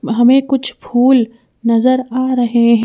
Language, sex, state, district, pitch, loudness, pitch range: Hindi, female, Madhya Pradesh, Bhopal, 245 Hz, -14 LUFS, 235-260 Hz